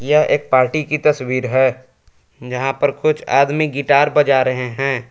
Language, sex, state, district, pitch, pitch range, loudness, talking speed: Hindi, male, Jharkhand, Palamu, 135 Hz, 130-150 Hz, -16 LUFS, 165 wpm